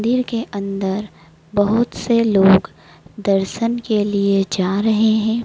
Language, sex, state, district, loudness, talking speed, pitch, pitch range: Hindi, female, Madhya Pradesh, Dhar, -18 LUFS, 130 wpm, 205 Hz, 195-225 Hz